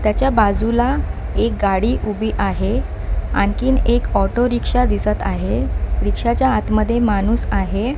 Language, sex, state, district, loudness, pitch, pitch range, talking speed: Marathi, female, Maharashtra, Mumbai Suburban, -18 LUFS, 230 Hz, 210-245 Hz, 120 wpm